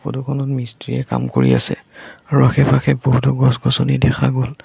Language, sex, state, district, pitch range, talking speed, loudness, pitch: Assamese, male, Assam, Sonitpur, 125-140 Hz, 165 wpm, -17 LUFS, 130 Hz